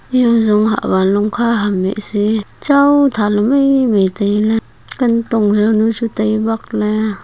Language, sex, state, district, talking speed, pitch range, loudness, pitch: Wancho, female, Arunachal Pradesh, Longding, 130 wpm, 210-230 Hz, -14 LUFS, 220 Hz